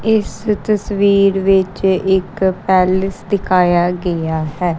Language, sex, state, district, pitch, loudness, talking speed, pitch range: Punjabi, female, Punjab, Kapurthala, 190 Hz, -15 LUFS, 100 wpm, 180-200 Hz